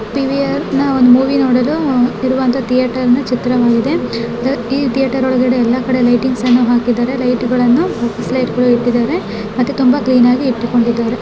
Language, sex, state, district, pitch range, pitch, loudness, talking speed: Kannada, female, Karnataka, Bijapur, 240-260 Hz, 250 Hz, -14 LUFS, 100 wpm